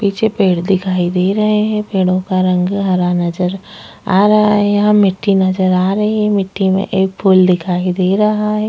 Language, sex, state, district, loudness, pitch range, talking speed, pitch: Hindi, female, Uttarakhand, Tehri Garhwal, -14 LUFS, 185-210 Hz, 195 wpm, 190 Hz